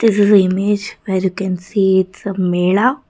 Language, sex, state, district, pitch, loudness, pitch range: English, female, Karnataka, Bangalore, 195 Hz, -16 LUFS, 185-205 Hz